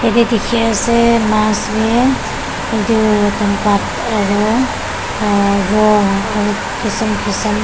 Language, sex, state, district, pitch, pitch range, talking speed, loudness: Nagamese, female, Nagaland, Kohima, 215 Hz, 205-230 Hz, 100 wpm, -14 LUFS